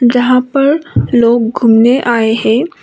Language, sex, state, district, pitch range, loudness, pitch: Hindi, female, Sikkim, Gangtok, 230-260 Hz, -11 LUFS, 245 Hz